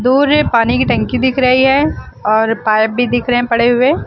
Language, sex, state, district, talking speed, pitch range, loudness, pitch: Hindi, female, Uttar Pradesh, Lucknow, 235 wpm, 230-260 Hz, -13 LUFS, 245 Hz